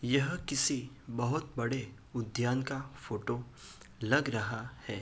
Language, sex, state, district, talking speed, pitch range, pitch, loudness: Hindi, male, Uttar Pradesh, Hamirpur, 120 wpm, 120-140 Hz, 125 Hz, -34 LUFS